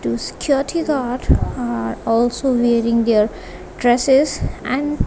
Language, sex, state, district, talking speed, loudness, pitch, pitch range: English, female, Punjab, Kapurthala, 95 wpm, -18 LUFS, 240 Hz, 210-270 Hz